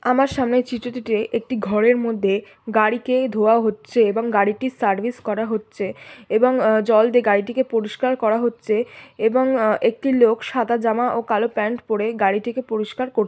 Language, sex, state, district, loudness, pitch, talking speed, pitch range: Bengali, female, West Bengal, Jhargram, -20 LUFS, 225 Hz, 160 wpm, 215-245 Hz